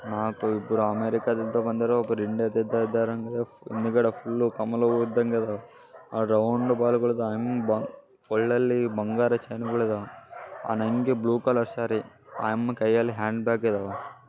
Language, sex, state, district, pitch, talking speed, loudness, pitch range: Kannada, male, Karnataka, Bellary, 115 Hz, 135 wpm, -26 LUFS, 110-120 Hz